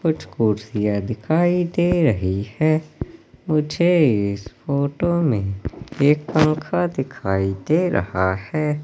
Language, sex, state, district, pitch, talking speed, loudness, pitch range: Hindi, male, Madhya Pradesh, Katni, 140 Hz, 110 wpm, -20 LUFS, 105-160 Hz